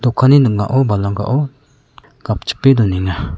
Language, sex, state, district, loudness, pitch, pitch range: Garo, male, Meghalaya, South Garo Hills, -15 LUFS, 120 Hz, 100-135 Hz